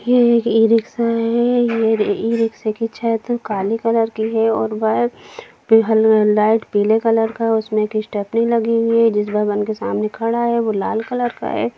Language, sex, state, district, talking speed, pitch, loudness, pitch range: Hindi, female, Bihar, Jamui, 195 wpm, 225 Hz, -17 LUFS, 215-230 Hz